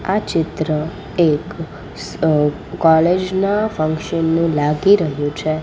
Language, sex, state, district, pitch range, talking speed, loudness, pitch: Gujarati, female, Gujarat, Gandhinagar, 155-185 Hz, 115 wpm, -17 LUFS, 160 Hz